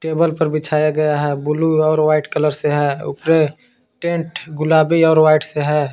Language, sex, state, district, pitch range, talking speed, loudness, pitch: Hindi, male, Jharkhand, Palamu, 150-160 Hz, 180 wpm, -16 LUFS, 155 Hz